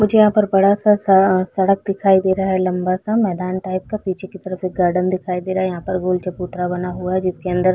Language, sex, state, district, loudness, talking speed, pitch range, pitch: Hindi, female, Chhattisgarh, Bilaspur, -18 LUFS, 255 wpm, 180-195 Hz, 185 Hz